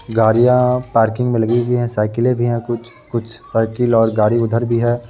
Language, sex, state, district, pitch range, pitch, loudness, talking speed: Hindi, male, Bihar, Araria, 115-120 Hz, 120 Hz, -16 LUFS, 225 wpm